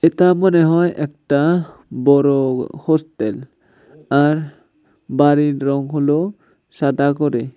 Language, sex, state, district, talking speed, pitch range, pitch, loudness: Bengali, male, Tripura, West Tripura, 95 wpm, 140-160 Hz, 145 Hz, -17 LUFS